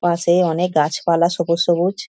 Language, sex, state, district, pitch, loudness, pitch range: Bengali, female, West Bengal, Dakshin Dinajpur, 170 Hz, -17 LUFS, 170-175 Hz